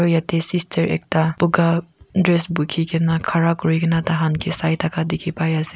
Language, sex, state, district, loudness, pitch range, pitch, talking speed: Nagamese, female, Nagaland, Kohima, -19 LUFS, 160-170 Hz, 165 Hz, 175 wpm